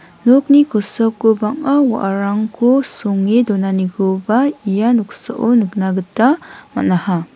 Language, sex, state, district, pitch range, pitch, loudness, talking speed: Garo, female, Meghalaya, West Garo Hills, 195-240 Hz, 220 Hz, -15 LUFS, 90 wpm